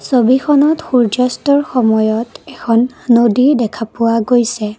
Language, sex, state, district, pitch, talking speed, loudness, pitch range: Assamese, female, Assam, Kamrup Metropolitan, 240 Hz, 115 wpm, -13 LUFS, 230-260 Hz